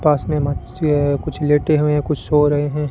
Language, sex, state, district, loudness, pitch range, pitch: Hindi, male, Rajasthan, Bikaner, -18 LUFS, 145-150 Hz, 150 Hz